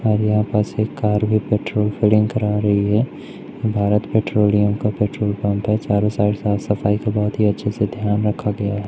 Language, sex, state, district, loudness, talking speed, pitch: Hindi, male, Madhya Pradesh, Umaria, -19 LUFS, 195 wpm, 105 Hz